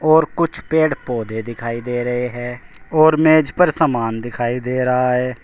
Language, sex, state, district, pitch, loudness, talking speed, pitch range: Hindi, male, Uttar Pradesh, Saharanpur, 125 Hz, -18 LUFS, 175 wpm, 120-155 Hz